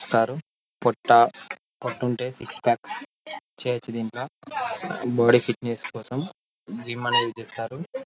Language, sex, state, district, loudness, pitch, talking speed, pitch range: Telugu, male, Telangana, Karimnagar, -25 LUFS, 120 Hz, 95 wpm, 115-130 Hz